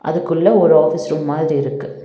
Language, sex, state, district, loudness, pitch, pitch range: Tamil, female, Tamil Nadu, Nilgiris, -15 LUFS, 155 Hz, 145-160 Hz